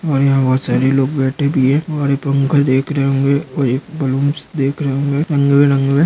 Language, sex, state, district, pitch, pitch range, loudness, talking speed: Hindi, male, Maharashtra, Dhule, 140 Hz, 135-145 Hz, -15 LUFS, 210 wpm